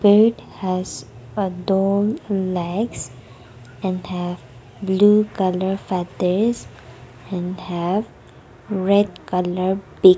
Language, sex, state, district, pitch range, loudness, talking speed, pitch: English, female, Nagaland, Kohima, 175-200 Hz, -21 LUFS, 90 wpm, 185 Hz